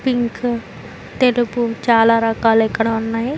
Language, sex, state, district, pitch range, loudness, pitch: Telugu, female, Andhra Pradesh, Chittoor, 225-240 Hz, -17 LUFS, 230 Hz